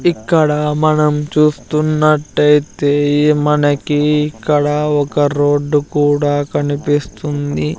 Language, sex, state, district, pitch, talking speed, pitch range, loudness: Telugu, male, Andhra Pradesh, Sri Satya Sai, 150 Hz, 70 wpm, 145-150 Hz, -14 LUFS